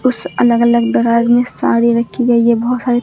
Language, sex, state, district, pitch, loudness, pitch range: Hindi, female, Bihar, Katihar, 235 Hz, -13 LUFS, 235-245 Hz